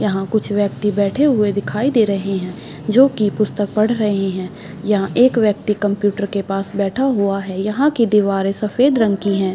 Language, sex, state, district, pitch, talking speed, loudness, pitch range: Hindi, female, Bihar, Madhepura, 205 Hz, 195 wpm, -17 LUFS, 195-220 Hz